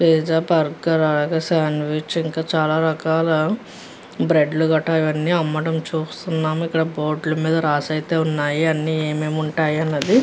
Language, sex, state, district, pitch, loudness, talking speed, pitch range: Telugu, female, Andhra Pradesh, Guntur, 160 Hz, -20 LUFS, 130 wpm, 155-165 Hz